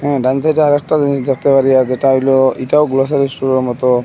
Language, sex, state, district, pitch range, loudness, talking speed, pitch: Bengali, male, Assam, Hailakandi, 130-145 Hz, -13 LUFS, 205 wpm, 135 Hz